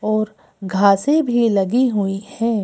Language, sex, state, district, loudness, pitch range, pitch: Hindi, female, Madhya Pradesh, Bhopal, -18 LUFS, 200-240 Hz, 215 Hz